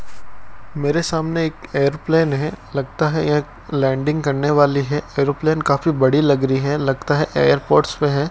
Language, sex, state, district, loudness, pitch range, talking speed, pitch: Hindi, male, Rajasthan, Bikaner, -18 LUFS, 140-155 Hz, 165 wpm, 145 Hz